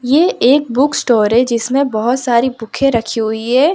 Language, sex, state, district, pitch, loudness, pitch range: Hindi, female, Gujarat, Valsad, 250 Hz, -14 LUFS, 230-275 Hz